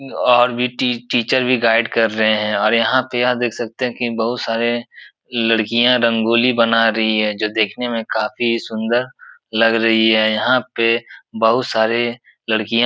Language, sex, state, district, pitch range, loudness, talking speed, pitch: Hindi, male, Uttar Pradesh, Etah, 110-120 Hz, -17 LUFS, 175 wpm, 115 Hz